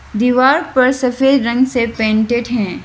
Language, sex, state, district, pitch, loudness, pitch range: Hindi, female, Arunachal Pradesh, Lower Dibang Valley, 250 Hz, -14 LUFS, 235-260 Hz